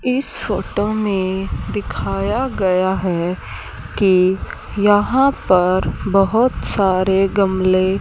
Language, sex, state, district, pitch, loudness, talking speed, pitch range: Hindi, female, Haryana, Charkhi Dadri, 190 Hz, -17 LUFS, 90 wpm, 185-205 Hz